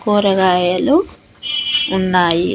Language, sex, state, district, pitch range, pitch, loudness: Telugu, female, Andhra Pradesh, Annamaya, 180-205 Hz, 190 Hz, -15 LUFS